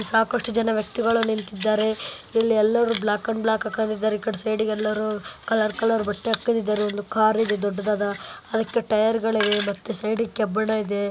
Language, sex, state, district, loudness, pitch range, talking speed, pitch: Kannada, male, Karnataka, Bellary, -23 LUFS, 210-225 Hz, 120 wpm, 220 Hz